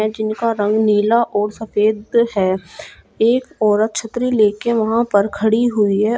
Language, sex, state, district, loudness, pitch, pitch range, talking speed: Hindi, female, Uttar Pradesh, Shamli, -17 LUFS, 215 Hz, 210-230 Hz, 145 wpm